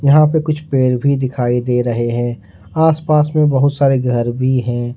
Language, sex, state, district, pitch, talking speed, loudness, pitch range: Hindi, male, Jharkhand, Ranchi, 130 Hz, 195 wpm, -15 LUFS, 120-150 Hz